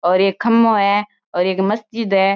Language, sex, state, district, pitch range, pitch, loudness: Marwari, female, Rajasthan, Churu, 190-225 Hz, 200 Hz, -17 LUFS